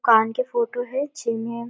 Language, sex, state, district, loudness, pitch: Surgujia, female, Chhattisgarh, Sarguja, -24 LUFS, 250 Hz